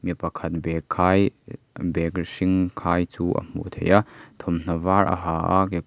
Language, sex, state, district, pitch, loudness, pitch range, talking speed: Mizo, male, Mizoram, Aizawl, 90 Hz, -23 LUFS, 85-95 Hz, 185 wpm